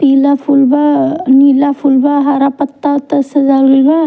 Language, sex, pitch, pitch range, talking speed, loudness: Bhojpuri, female, 280 Hz, 275-290 Hz, 190 wpm, -10 LUFS